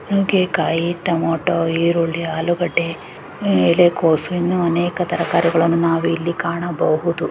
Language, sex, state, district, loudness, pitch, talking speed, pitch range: Kannada, female, Karnataka, Raichur, -18 LUFS, 170 Hz, 100 wpm, 165-175 Hz